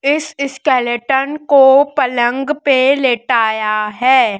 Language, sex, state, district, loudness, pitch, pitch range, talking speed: Hindi, male, Madhya Pradesh, Dhar, -13 LUFS, 265 Hz, 240-280 Hz, 95 wpm